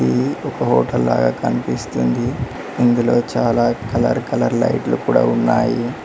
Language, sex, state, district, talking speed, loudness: Telugu, male, Telangana, Mahabubabad, 120 wpm, -18 LUFS